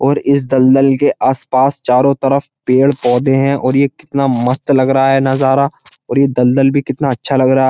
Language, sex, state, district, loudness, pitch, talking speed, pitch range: Hindi, male, Uttar Pradesh, Jyotiba Phule Nagar, -13 LUFS, 135 Hz, 210 wpm, 130-140 Hz